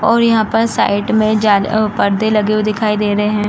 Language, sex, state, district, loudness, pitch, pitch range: Hindi, female, Uttar Pradesh, Jalaun, -14 LUFS, 215 Hz, 210-220 Hz